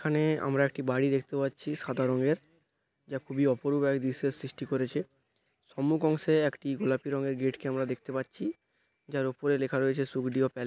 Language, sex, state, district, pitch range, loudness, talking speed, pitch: Bengali, male, West Bengal, Dakshin Dinajpur, 130-145 Hz, -31 LUFS, 180 wpm, 135 Hz